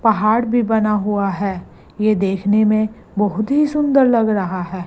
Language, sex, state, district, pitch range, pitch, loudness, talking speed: Hindi, female, Gujarat, Gandhinagar, 200-225 Hz, 215 Hz, -17 LUFS, 175 wpm